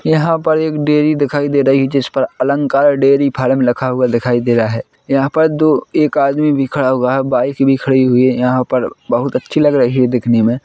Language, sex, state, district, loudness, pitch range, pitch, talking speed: Hindi, male, Chhattisgarh, Korba, -14 LUFS, 125-145 Hz, 135 Hz, 235 wpm